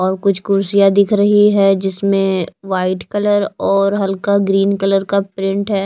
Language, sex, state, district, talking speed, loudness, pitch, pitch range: Hindi, female, Maharashtra, Mumbai Suburban, 165 wpm, -15 LUFS, 195 Hz, 195-200 Hz